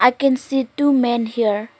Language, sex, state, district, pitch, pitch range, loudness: English, female, Arunachal Pradesh, Lower Dibang Valley, 250 Hz, 235-270 Hz, -19 LUFS